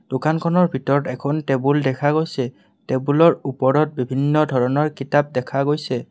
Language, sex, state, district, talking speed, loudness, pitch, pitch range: Assamese, male, Assam, Kamrup Metropolitan, 130 wpm, -20 LUFS, 140 Hz, 130-150 Hz